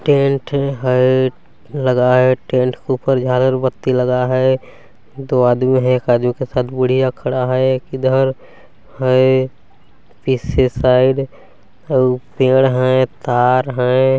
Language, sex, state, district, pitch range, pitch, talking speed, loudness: Hindi, male, Chhattisgarh, Balrampur, 125-130 Hz, 130 Hz, 125 wpm, -15 LUFS